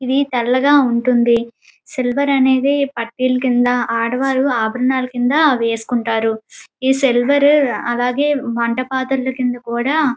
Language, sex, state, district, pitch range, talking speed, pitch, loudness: Telugu, female, Andhra Pradesh, Srikakulam, 240-270 Hz, 110 wpm, 255 Hz, -16 LUFS